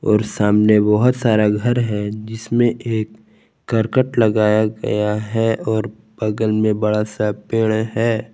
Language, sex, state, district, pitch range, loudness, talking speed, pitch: Hindi, male, Jharkhand, Palamu, 105-115 Hz, -18 LUFS, 135 wpm, 110 Hz